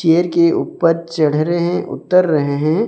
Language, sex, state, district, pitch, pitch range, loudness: Hindi, male, Odisha, Sambalpur, 165 Hz, 155-175 Hz, -16 LUFS